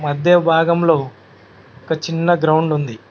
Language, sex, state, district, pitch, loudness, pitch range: Telugu, male, Telangana, Mahabubabad, 155 Hz, -16 LUFS, 135-165 Hz